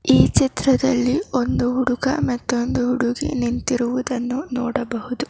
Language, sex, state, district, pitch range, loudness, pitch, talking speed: Kannada, female, Karnataka, Bangalore, 245-265 Hz, -20 LUFS, 250 Hz, 100 wpm